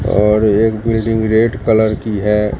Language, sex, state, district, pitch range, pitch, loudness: Hindi, male, Bihar, Katihar, 105-110 Hz, 110 Hz, -14 LUFS